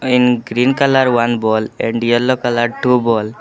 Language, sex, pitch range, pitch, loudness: English, male, 115-125 Hz, 120 Hz, -15 LUFS